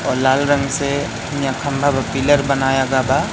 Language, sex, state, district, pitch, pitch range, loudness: Hindi, male, Madhya Pradesh, Katni, 140 Hz, 135-145 Hz, -17 LUFS